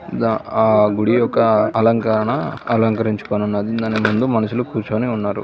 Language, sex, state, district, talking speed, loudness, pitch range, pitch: Telugu, male, Telangana, Nalgonda, 110 wpm, -18 LUFS, 105-115 Hz, 110 Hz